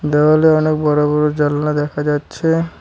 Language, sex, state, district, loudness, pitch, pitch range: Bengali, male, West Bengal, Cooch Behar, -15 LUFS, 150 Hz, 150-155 Hz